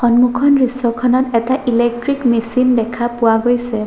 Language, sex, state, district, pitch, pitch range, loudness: Assamese, female, Assam, Sonitpur, 240 Hz, 235-255 Hz, -15 LUFS